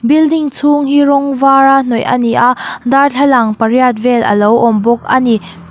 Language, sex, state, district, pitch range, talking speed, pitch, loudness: Mizo, female, Mizoram, Aizawl, 235-280 Hz, 170 wpm, 255 Hz, -10 LUFS